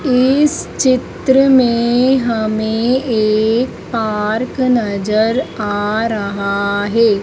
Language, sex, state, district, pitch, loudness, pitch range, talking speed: Hindi, female, Madhya Pradesh, Dhar, 225 Hz, -15 LUFS, 215-255 Hz, 85 wpm